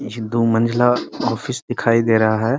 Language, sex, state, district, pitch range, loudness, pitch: Hindi, male, Bihar, Muzaffarpur, 115-120 Hz, -18 LUFS, 115 Hz